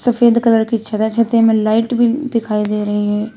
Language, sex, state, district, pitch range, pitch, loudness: Hindi, female, Uttar Pradesh, Shamli, 215-235 Hz, 225 Hz, -15 LUFS